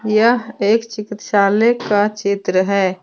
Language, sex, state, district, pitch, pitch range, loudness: Hindi, female, Jharkhand, Deoghar, 210 Hz, 200-225 Hz, -16 LUFS